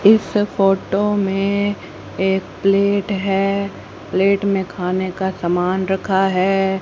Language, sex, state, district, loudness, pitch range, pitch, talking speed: Hindi, female, Haryana, Rohtak, -18 LUFS, 190-200 Hz, 195 Hz, 115 wpm